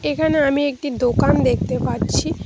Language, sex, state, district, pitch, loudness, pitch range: Bengali, female, West Bengal, Cooch Behar, 285 Hz, -19 LUFS, 275-295 Hz